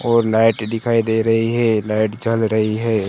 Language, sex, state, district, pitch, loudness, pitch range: Hindi, male, Gujarat, Gandhinagar, 115 Hz, -17 LUFS, 110-115 Hz